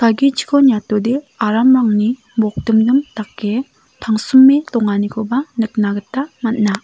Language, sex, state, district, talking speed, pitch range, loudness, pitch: Garo, female, Meghalaya, South Garo Hills, 90 wpm, 215-260 Hz, -15 LUFS, 230 Hz